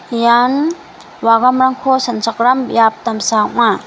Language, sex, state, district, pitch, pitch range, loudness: Garo, female, Meghalaya, West Garo Hills, 235 Hz, 230-260 Hz, -13 LUFS